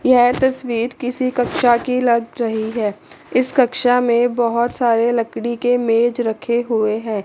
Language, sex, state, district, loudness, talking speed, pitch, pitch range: Hindi, female, Chandigarh, Chandigarh, -17 LUFS, 155 wpm, 240 Hz, 230-250 Hz